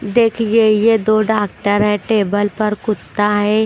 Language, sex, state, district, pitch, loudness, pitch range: Hindi, female, Haryana, Rohtak, 215 Hz, -15 LUFS, 205-220 Hz